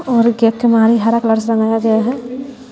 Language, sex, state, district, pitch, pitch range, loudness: Hindi, female, Bihar, West Champaran, 230 Hz, 225-245 Hz, -14 LUFS